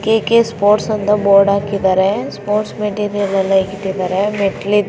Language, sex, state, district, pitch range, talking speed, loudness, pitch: Kannada, female, Karnataka, Raichur, 195-210 Hz, 110 wpm, -15 LUFS, 200 Hz